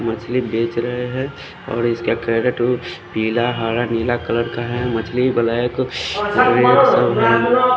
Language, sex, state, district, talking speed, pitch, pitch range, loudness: Hindi, male, Odisha, Khordha, 125 wpm, 120 Hz, 115-125 Hz, -18 LUFS